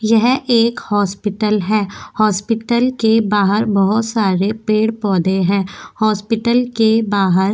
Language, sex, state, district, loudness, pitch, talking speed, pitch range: Hindi, female, Goa, North and South Goa, -16 LUFS, 215 Hz, 120 wpm, 200-225 Hz